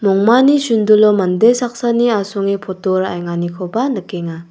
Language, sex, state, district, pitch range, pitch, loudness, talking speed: Garo, female, Meghalaya, South Garo Hills, 185-235 Hz, 200 Hz, -15 LUFS, 105 wpm